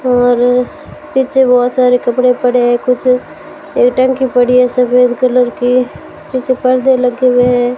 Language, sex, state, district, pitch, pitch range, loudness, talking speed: Hindi, female, Rajasthan, Bikaner, 250 Hz, 245-255 Hz, -11 LUFS, 155 wpm